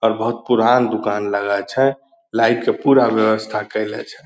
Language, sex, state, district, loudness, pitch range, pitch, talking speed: Angika, male, Bihar, Purnia, -18 LUFS, 105-125 Hz, 115 Hz, 170 wpm